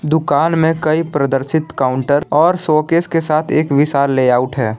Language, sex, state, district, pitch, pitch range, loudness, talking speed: Hindi, male, Jharkhand, Palamu, 155 Hz, 135-160 Hz, -14 LUFS, 160 wpm